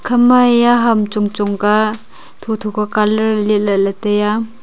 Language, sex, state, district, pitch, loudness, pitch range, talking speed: Wancho, female, Arunachal Pradesh, Longding, 215 Hz, -14 LUFS, 210-230 Hz, 180 wpm